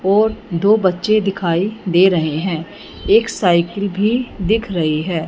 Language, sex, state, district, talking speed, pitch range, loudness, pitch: Hindi, female, Punjab, Fazilka, 150 wpm, 170-215 Hz, -17 LUFS, 190 Hz